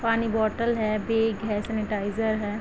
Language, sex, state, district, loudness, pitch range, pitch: Hindi, female, Chhattisgarh, Bilaspur, -26 LUFS, 215-225 Hz, 220 Hz